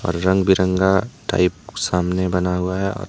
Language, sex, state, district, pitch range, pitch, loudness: Hindi, male, Jharkhand, Deoghar, 90-95 Hz, 95 Hz, -19 LUFS